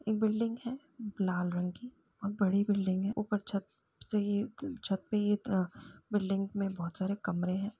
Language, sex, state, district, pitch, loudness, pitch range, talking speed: Hindi, female, Uttar Pradesh, Jalaun, 205 Hz, -34 LUFS, 190-215 Hz, 190 wpm